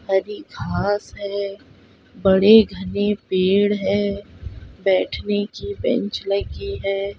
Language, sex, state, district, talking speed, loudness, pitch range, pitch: Hindi, female, Bihar, Saharsa, 90 wpm, -20 LUFS, 185-205 Hz, 200 Hz